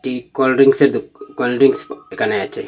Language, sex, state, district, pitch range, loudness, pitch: Bengali, male, Assam, Hailakandi, 130-140 Hz, -16 LUFS, 135 Hz